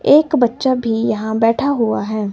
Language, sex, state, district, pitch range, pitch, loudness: Hindi, male, Himachal Pradesh, Shimla, 220-265 Hz, 230 Hz, -16 LUFS